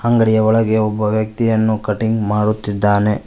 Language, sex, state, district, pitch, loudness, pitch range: Kannada, male, Karnataka, Koppal, 110 Hz, -16 LUFS, 105-110 Hz